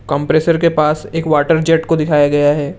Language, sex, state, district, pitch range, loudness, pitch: Hindi, male, Assam, Kamrup Metropolitan, 145-165 Hz, -14 LUFS, 155 Hz